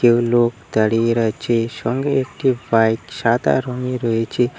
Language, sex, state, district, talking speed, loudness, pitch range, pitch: Bengali, male, West Bengal, Cooch Behar, 130 wpm, -19 LUFS, 115-125 Hz, 120 Hz